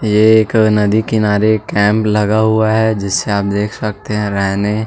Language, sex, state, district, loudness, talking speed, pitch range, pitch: Hindi, male, Chhattisgarh, Jashpur, -14 LUFS, 185 wpm, 105-110 Hz, 105 Hz